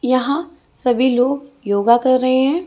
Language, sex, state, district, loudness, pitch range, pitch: Hindi, female, Chhattisgarh, Raipur, -17 LUFS, 250-280 Hz, 255 Hz